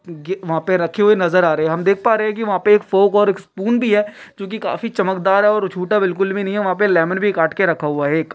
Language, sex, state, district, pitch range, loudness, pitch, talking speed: Hindi, male, Jharkhand, Jamtara, 175-210 Hz, -17 LUFS, 195 Hz, 300 wpm